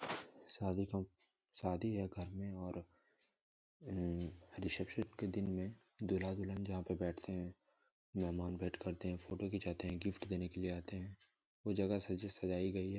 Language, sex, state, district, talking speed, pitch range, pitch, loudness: Hindi, male, Jharkhand, Jamtara, 170 wpm, 90-100 Hz, 95 Hz, -43 LUFS